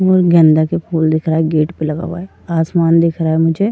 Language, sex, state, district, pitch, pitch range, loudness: Hindi, female, Uttar Pradesh, Varanasi, 165 Hz, 160-175 Hz, -14 LUFS